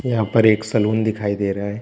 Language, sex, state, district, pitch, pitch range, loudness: Hindi, male, Chhattisgarh, Bilaspur, 110 Hz, 100-110 Hz, -19 LUFS